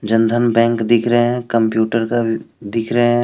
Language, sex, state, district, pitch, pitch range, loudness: Hindi, male, Jharkhand, Deoghar, 115 Hz, 115-120 Hz, -16 LUFS